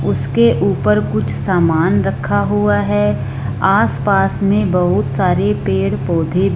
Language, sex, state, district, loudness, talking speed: Hindi, female, Punjab, Fazilka, -15 LUFS, 130 wpm